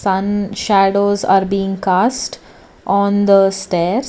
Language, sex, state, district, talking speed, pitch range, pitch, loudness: English, female, Karnataka, Bangalore, 120 wpm, 195-205 Hz, 195 Hz, -15 LUFS